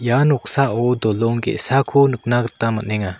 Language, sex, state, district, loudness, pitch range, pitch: Garo, male, Meghalaya, South Garo Hills, -18 LUFS, 110-135 Hz, 120 Hz